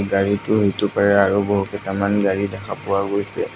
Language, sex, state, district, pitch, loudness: Assamese, male, Assam, Sonitpur, 100 Hz, -19 LUFS